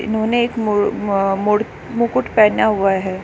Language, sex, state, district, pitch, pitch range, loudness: Hindi, female, Chhattisgarh, Raigarh, 210 Hz, 195-225 Hz, -17 LUFS